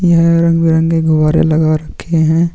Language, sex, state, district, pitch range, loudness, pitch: Hindi, male, Chhattisgarh, Sukma, 160-165 Hz, -12 LUFS, 160 Hz